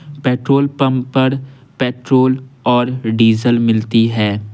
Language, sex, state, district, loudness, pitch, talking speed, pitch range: Hindi, male, Bihar, Patna, -15 LUFS, 125 Hz, 105 wpm, 115-135 Hz